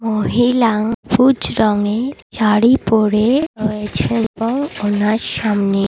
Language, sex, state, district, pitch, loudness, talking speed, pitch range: Bengali, female, Odisha, Malkangiri, 220 Hz, -16 LUFS, 90 wpm, 210-240 Hz